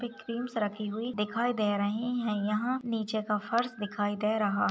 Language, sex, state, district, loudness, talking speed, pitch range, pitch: Hindi, female, Uttar Pradesh, Muzaffarnagar, -31 LUFS, 205 wpm, 210-240 Hz, 215 Hz